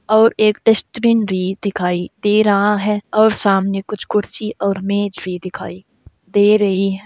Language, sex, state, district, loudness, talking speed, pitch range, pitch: Hindi, female, Uttar Pradesh, Saharanpur, -16 LUFS, 160 wpm, 195-215 Hz, 205 Hz